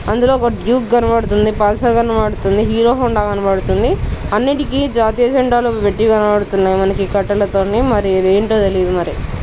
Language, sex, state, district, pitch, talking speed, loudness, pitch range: Telugu, female, Telangana, Nalgonda, 215 Hz, 140 wpm, -14 LUFS, 200-235 Hz